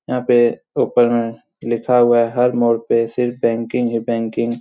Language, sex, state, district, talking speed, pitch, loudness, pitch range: Hindi, male, Bihar, Supaul, 195 wpm, 120 Hz, -17 LUFS, 115-120 Hz